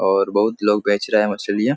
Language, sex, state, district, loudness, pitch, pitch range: Hindi, male, Bihar, Supaul, -19 LUFS, 105 Hz, 100-105 Hz